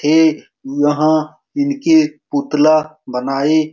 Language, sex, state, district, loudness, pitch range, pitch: Hindi, male, Bihar, Saran, -15 LUFS, 145-160 Hz, 155 Hz